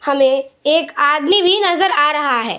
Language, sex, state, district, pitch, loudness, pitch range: Hindi, female, Bihar, Saharsa, 300 Hz, -14 LUFS, 285-360 Hz